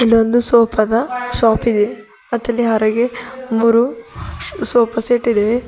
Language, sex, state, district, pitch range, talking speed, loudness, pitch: Kannada, female, Karnataka, Bidar, 225-240 Hz, 115 wpm, -16 LUFS, 235 Hz